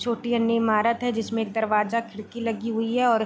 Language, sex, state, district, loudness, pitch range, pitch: Hindi, female, Bihar, Vaishali, -24 LUFS, 220-235 Hz, 230 Hz